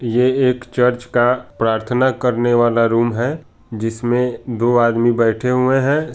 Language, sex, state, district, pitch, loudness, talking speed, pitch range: Bhojpuri, male, Bihar, Saran, 120 Hz, -17 LUFS, 145 wpm, 115-125 Hz